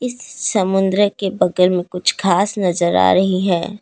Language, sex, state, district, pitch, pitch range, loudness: Hindi, female, Assam, Kamrup Metropolitan, 190 Hz, 180-205 Hz, -17 LUFS